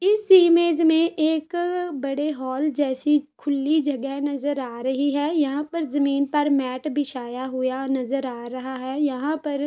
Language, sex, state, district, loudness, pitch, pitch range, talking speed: Hindi, female, Uttar Pradesh, Jalaun, -23 LUFS, 285 Hz, 265-310 Hz, 165 wpm